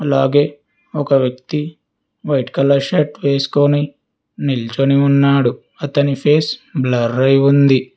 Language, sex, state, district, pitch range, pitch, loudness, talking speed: Telugu, male, Telangana, Hyderabad, 135-145 Hz, 140 Hz, -15 LUFS, 100 wpm